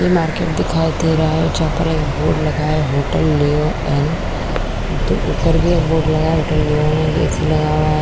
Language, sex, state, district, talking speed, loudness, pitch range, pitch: Hindi, female, Bihar, Kishanganj, 150 wpm, -17 LUFS, 140-160 Hz, 155 Hz